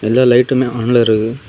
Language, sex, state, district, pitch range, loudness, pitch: Tamil, male, Tamil Nadu, Kanyakumari, 110-125 Hz, -13 LUFS, 120 Hz